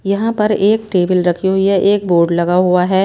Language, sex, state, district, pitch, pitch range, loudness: Hindi, female, Himachal Pradesh, Shimla, 190 Hz, 180-200 Hz, -14 LUFS